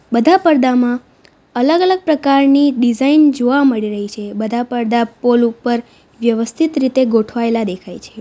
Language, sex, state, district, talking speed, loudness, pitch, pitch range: Gujarati, female, Gujarat, Valsad, 140 wpm, -14 LUFS, 245 Hz, 230-280 Hz